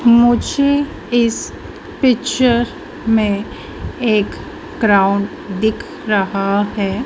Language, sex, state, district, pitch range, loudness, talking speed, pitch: Hindi, female, Madhya Pradesh, Dhar, 200-245 Hz, -16 LUFS, 75 wpm, 225 Hz